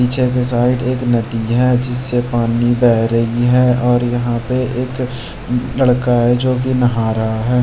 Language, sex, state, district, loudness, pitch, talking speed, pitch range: Hindi, male, Bihar, Jamui, -15 LUFS, 125 Hz, 175 wpm, 120-125 Hz